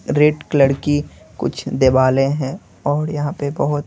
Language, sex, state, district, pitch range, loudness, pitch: Hindi, male, Bihar, Patna, 135-145 Hz, -18 LUFS, 145 Hz